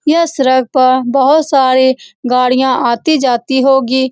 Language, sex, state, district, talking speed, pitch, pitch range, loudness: Hindi, female, Bihar, Saran, 115 wpm, 260 Hz, 255-270 Hz, -11 LUFS